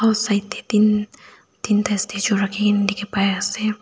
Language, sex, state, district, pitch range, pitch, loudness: Nagamese, female, Nagaland, Dimapur, 200-215 Hz, 210 Hz, -20 LUFS